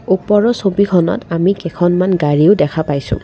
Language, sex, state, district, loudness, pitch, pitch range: Assamese, female, Assam, Kamrup Metropolitan, -14 LUFS, 180 Hz, 160-195 Hz